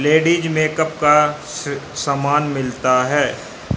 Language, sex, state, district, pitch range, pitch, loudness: Hindi, male, Haryana, Rohtak, 140-155 Hz, 150 Hz, -18 LUFS